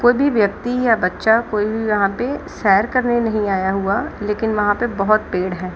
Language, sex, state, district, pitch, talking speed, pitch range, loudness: Hindi, female, Bihar, Gaya, 215 Hz, 200 wpm, 200-240 Hz, -18 LUFS